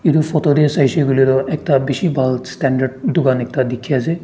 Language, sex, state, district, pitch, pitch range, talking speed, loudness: Nagamese, male, Nagaland, Dimapur, 140 Hz, 130-155 Hz, 185 wpm, -16 LUFS